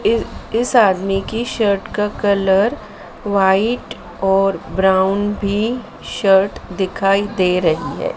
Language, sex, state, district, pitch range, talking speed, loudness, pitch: Hindi, female, Madhya Pradesh, Dhar, 190-220 Hz, 120 wpm, -17 LUFS, 200 Hz